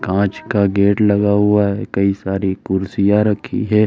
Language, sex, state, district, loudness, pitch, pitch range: Hindi, male, Bihar, Saran, -16 LUFS, 100 Hz, 100-105 Hz